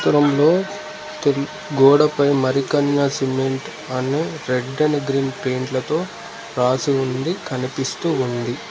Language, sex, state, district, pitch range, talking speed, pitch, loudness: Telugu, male, Telangana, Mahabubabad, 130-145 Hz, 105 wpm, 135 Hz, -20 LUFS